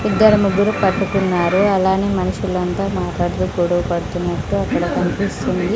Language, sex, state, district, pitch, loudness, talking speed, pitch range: Telugu, female, Andhra Pradesh, Sri Satya Sai, 190 Hz, -18 LUFS, 105 wpm, 175-195 Hz